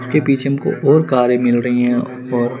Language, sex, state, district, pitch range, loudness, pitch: Hindi, male, Chandigarh, Chandigarh, 125-140 Hz, -16 LUFS, 125 Hz